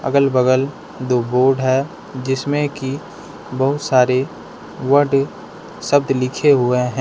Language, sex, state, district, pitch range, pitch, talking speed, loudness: Hindi, male, Jharkhand, Deoghar, 130-140 Hz, 130 Hz, 120 wpm, -17 LUFS